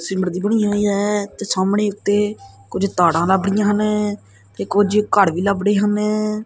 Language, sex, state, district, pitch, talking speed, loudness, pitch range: Punjabi, male, Punjab, Kapurthala, 205 Hz, 185 wpm, -18 LUFS, 190-210 Hz